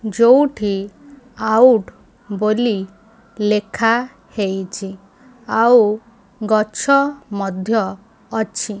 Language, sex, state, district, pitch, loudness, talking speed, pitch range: Odia, female, Odisha, Khordha, 220 Hz, -17 LUFS, 60 wpm, 205-235 Hz